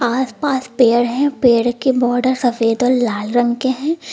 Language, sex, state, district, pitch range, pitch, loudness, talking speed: Hindi, female, Uttar Pradesh, Lucknow, 240-260 Hz, 245 Hz, -16 LUFS, 175 wpm